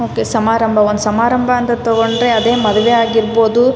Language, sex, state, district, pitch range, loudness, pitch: Kannada, female, Karnataka, Raichur, 225-240 Hz, -13 LUFS, 230 Hz